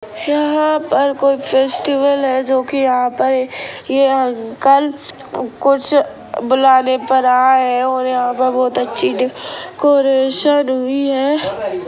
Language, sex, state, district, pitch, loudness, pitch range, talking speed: Hindi, female, Bihar, Sitamarhi, 265 Hz, -15 LUFS, 255-280 Hz, 120 wpm